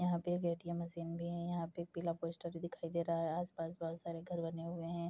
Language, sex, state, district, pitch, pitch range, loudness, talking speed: Hindi, female, Bihar, Bhagalpur, 170 Hz, 165-170 Hz, -41 LUFS, 260 wpm